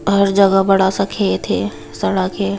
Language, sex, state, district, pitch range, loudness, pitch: Hindi, female, Bihar, Sitamarhi, 190-195 Hz, -16 LUFS, 195 Hz